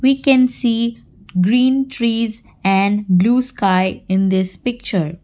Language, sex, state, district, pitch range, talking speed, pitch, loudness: English, female, Assam, Kamrup Metropolitan, 190-250 Hz, 125 wpm, 230 Hz, -17 LUFS